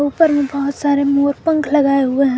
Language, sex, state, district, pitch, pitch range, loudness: Hindi, female, Jharkhand, Garhwa, 280 Hz, 275-290 Hz, -15 LUFS